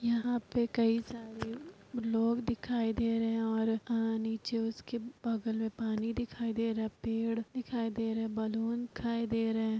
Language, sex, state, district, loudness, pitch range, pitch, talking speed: Hindi, female, Uttar Pradesh, Etah, -34 LUFS, 225-235 Hz, 230 Hz, 190 wpm